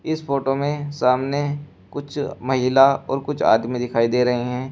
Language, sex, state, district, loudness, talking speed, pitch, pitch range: Hindi, male, Uttar Pradesh, Shamli, -20 LUFS, 165 wpm, 135 Hz, 125-145 Hz